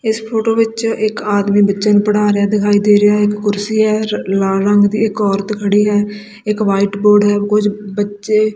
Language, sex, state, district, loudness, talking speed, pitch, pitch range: Punjabi, female, Punjab, Kapurthala, -14 LUFS, 210 wpm, 210 Hz, 205-215 Hz